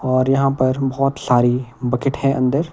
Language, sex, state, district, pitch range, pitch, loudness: Hindi, male, Himachal Pradesh, Shimla, 125-135 Hz, 130 Hz, -18 LUFS